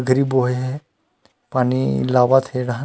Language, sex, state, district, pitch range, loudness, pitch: Chhattisgarhi, male, Chhattisgarh, Rajnandgaon, 125-135 Hz, -19 LUFS, 125 Hz